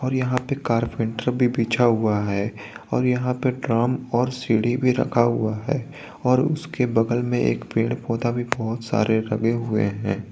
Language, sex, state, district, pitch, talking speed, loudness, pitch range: Hindi, male, Jharkhand, Garhwa, 120 Hz, 175 wpm, -22 LUFS, 110-125 Hz